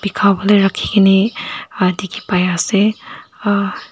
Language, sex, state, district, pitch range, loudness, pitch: Nagamese, female, Nagaland, Dimapur, 185-210 Hz, -15 LUFS, 200 Hz